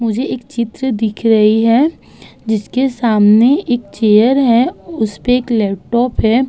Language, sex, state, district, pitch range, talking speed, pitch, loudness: Hindi, female, Uttar Pradesh, Budaun, 220-255 Hz, 140 wpm, 235 Hz, -14 LUFS